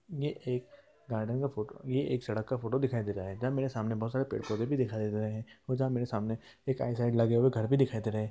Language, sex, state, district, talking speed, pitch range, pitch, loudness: Hindi, male, Bihar, East Champaran, 275 wpm, 110-130 Hz, 120 Hz, -33 LUFS